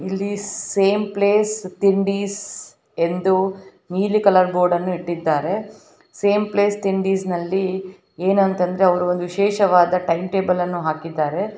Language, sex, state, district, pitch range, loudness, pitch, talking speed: Kannada, female, Karnataka, Dharwad, 180-200 Hz, -20 LUFS, 190 Hz, 125 wpm